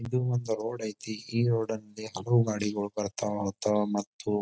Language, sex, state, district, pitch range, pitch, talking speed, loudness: Kannada, male, Karnataka, Bijapur, 105-115 Hz, 110 Hz, 165 wpm, -30 LUFS